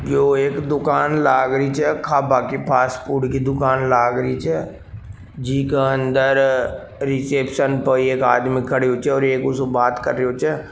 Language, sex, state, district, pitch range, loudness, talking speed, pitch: Marwari, male, Rajasthan, Nagaur, 130-140 Hz, -18 LUFS, 155 wpm, 135 Hz